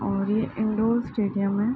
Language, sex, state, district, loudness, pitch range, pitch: Hindi, female, Bihar, Bhagalpur, -25 LUFS, 200-225 Hz, 215 Hz